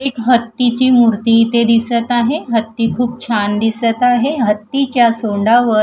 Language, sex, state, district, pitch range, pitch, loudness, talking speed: Marathi, female, Maharashtra, Gondia, 225-245 Hz, 235 Hz, -14 LUFS, 135 wpm